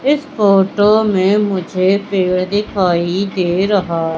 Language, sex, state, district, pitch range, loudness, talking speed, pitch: Hindi, female, Madhya Pradesh, Katni, 185-205 Hz, -15 LUFS, 115 wpm, 195 Hz